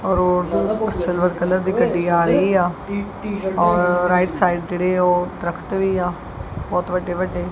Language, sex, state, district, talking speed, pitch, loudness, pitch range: Punjabi, male, Punjab, Kapurthala, 160 wpm, 180 Hz, -19 LUFS, 175-190 Hz